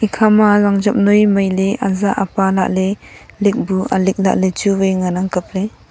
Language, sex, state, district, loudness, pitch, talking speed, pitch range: Wancho, female, Arunachal Pradesh, Longding, -15 LUFS, 195 Hz, 150 wpm, 190-205 Hz